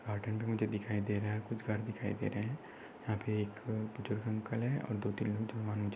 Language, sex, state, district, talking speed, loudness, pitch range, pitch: Hindi, male, Maharashtra, Nagpur, 250 wpm, -38 LUFS, 105-110 Hz, 110 Hz